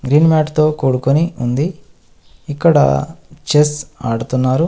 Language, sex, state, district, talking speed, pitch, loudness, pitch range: Telugu, male, Telangana, Adilabad, 100 wpm, 150 Hz, -15 LUFS, 130-155 Hz